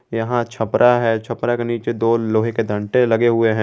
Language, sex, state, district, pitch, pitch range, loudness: Hindi, male, Jharkhand, Garhwa, 115 Hz, 115-120 Hz, -18 LUFS